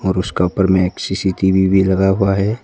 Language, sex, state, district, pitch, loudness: Hindi, male, Arunachal Pradesh, Papum Pare, 95 Hz, -15 LUFS